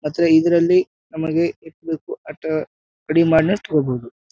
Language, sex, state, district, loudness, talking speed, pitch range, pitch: Kannada, male, Karnataka, Bijapur, -19 LUFS, 95 wpm, 155-170 Hz, 160 Hz